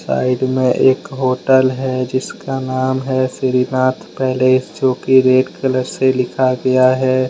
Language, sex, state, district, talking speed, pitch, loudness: Hindi, male, Jharkhand, Deoghar, 155 wpm, 130 Hz, -15 LUFS